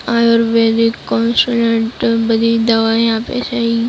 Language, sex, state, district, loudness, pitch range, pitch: Gujarati, female, Maharashtra, Mumbai Suburban, -14 LUFS, 230-235 Hz, 230 Hz